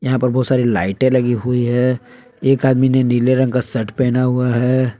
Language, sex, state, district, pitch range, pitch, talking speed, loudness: Hindi, male, Jharkhand, Palamu, 120-130 Hz, 125 Hz, 215 wpm, -16 LUFS